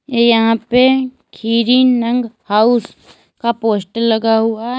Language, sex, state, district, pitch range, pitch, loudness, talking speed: Hindi, female, Uttar Pradesh, Lalitpur, 225-250 Hz, 235 Hz, -14 LUFS, 125 wpm